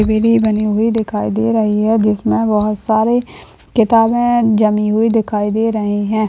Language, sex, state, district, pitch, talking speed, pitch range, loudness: Hindi, male, Maharashtra, Nagpur, 220 Hz, 160 wpm, 210-225 Hz, -14 LUFS